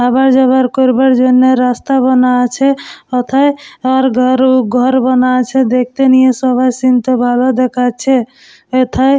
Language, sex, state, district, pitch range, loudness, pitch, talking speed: Bengali, female, West Bengal, Dakshin Dinajpur, 250-265 Hz, -11 LUFS, 255 Hz, 145 wpm